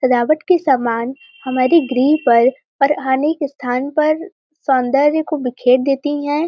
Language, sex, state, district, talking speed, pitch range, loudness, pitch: Hindi, female, Uttar Pradesh, Varanasi, 150 wpm, 255-305 Hz, -16 LUFS, 275 Hz